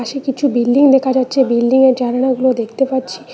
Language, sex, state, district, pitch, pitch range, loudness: Bengali, female, West Bengal, Cooch Behar, 260 Hz, 245-270 Hz, -14 LUFS